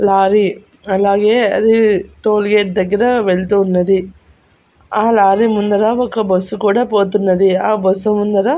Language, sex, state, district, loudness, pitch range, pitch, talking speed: Telugu, female, Andhra Pradesh, Annamaya, -14 LUFS, 190-215 Hz, 205 Hz, 135 wpm